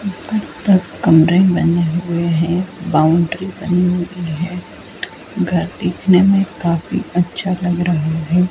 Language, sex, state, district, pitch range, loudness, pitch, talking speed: Hindi, female, Madhya Pradesh, Dhar, 170-185 Hz, -16 LUFS, 175 Hz, 125 wpm